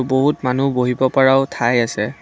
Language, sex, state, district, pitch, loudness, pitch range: Assamese, female, Assam, Kamrup Metropolitan, 130 Hz, -17 LUFS, 125-135 Hz